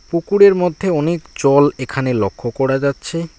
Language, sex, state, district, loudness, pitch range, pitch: Bengali, male, West Bengal, Alipurduar, -16 LUFS, 135-170 Hz, 145 Hz